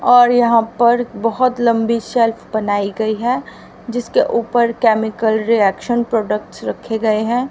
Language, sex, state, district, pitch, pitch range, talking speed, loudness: Hindi, female, Haryana, Rohtak, 230 Hz, 220-240 Hz, 135 wpm, -16 LUFS